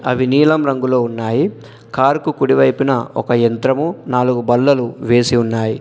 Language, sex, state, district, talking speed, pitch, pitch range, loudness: Telugu, male, Telangana, Adilabad, 135 wpm, 120 Hz, 115-130 Hz, -15 LUFS